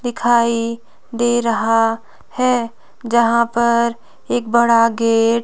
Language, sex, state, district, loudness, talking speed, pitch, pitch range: Hindi, female, Himachal Pradesh, Shimla, -16 LUFS, 110 wpm, 235 Hz, 230-235 Hz